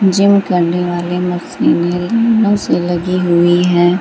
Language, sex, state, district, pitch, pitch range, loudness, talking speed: Hindi, female, Bihar, Gaya, 180 Hz, 175-195 Hz, -13 LUFS, 120 wpm